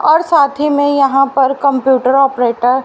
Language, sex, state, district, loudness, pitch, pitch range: Hindi, female, Haryana, Rohtak, -12 LUFS, 275 Hz, 260-285 Hz